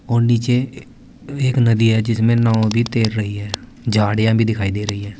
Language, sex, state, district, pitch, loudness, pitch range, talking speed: Hindi, male, Uttar Pradesh, Saharanpur, 115 Hz, -17 LUFS, 105-120 Hz, 195 wpm